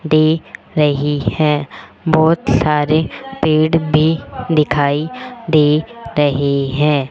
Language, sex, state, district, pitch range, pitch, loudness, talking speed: Hindi, female, Rajasthan, Jaipur, 145-160 Hz, 155 Hz, -15 LUFS, 95 wpm